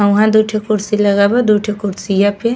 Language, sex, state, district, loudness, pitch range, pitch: Bhojpuri, female, Uttar Pradesh, Ghazipur, -14 LUFS, 200-215 Hz, 210 Hz